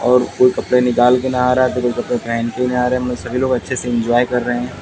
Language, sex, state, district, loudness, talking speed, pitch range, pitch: Hindi, male, Haryana, Jhajjar, -16 LUFS, 275 wpm, 120-125 Hz, 125 Hz